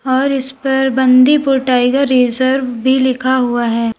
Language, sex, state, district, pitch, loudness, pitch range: Hindi, female, Uttar Pradesh, Lalitpur, 260 Hz, -13 LUFS, 250-265 Hz